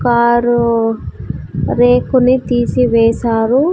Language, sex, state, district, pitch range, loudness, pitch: Telugu, female, Andhra Pradesh, Sri Satya Sai, 230-250 Hz, -13 LUFS, 240 Hz